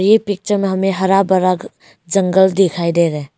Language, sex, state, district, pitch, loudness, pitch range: Hindi, female, Arunachal Pradesh, Longding, 190 Hz, -15 LUFS, 175-195 Hz